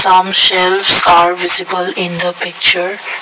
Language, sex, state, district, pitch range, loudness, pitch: English, male, Assam, Kamrup Metropolitan, 180-185 Hz, -10 LUFS, 185 Hz